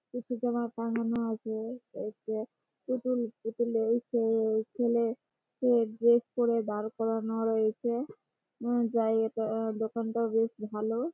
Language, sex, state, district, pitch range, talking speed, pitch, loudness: Bengali, female, West Bengal, Malda, 220-240 Hz, 90 wpm, 230 Hz, -31 LUFS